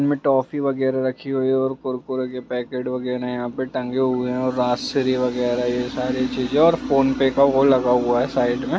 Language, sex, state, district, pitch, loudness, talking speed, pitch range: Hindi, male, Bihar, Lakhisarai, 130 Hz, -21 LUFS, 220 wpm, 125-135 Hz